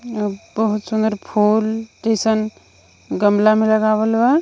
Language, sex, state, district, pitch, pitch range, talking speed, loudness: Bhojpuri, female, Jharkhand, Palamu, 215 Hz, 210-220 Hz, 120 wpm, -18 LUFS